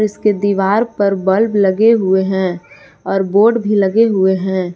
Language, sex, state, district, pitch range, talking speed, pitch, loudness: Hindi, female, Jharkhand, Palamu, 190-215 Hz, 165 wpm, 200 Hz, -14 LUFS